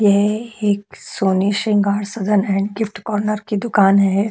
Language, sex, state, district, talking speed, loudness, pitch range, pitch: Hindi, female, Chhattisgarh, Korba, 155 wpm, -18 LUFS, 200-210 Hz, 205 Hz